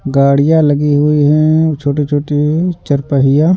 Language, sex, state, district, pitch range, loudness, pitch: Hindi, male, Bihar, Patna, 140-155 Hz, -12 LUFS, 145 Hz